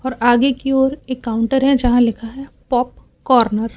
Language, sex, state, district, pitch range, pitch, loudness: Hindi, female, Chhattisgarh, Raipur, 235-265 Hz, 250 Hz, -16 LUFS